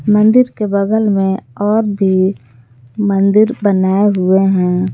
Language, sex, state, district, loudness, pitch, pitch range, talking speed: Hindi, female, Jharkhand, Palamu, -13 LUFS, 200 Hz, 190-210 Hz, 120 wpm